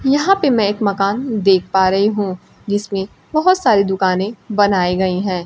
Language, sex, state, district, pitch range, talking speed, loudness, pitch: Hindi, female, Bihar, Kaimur, 190-225 Hz, 175 wpm, -16 LUFS, 200 Hz